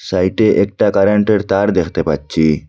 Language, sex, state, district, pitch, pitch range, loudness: Bengali, male, Assam, Hailakandi, 100 Hz, 85-105 Hz, -14 LUFS